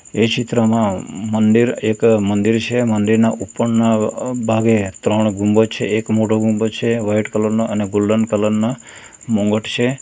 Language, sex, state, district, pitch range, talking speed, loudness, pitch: Gujarati, male, Gujarat, Valsad, 105-115 Hz, 155 wpm, -17 LUFS, 110 Hz